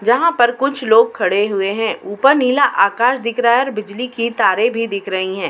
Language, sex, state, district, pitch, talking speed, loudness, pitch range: Hindi, female, Uttar Pradesh, Muzaffarnagar, 230 Hz, 230 wpm, -16 LUFS, 205-250 Hz